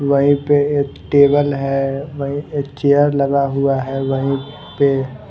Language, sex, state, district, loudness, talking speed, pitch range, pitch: Hindi, male, Haryana, Rohtak, -17 LUFS, 145 wpm, 135-145 Hz, 140 Hz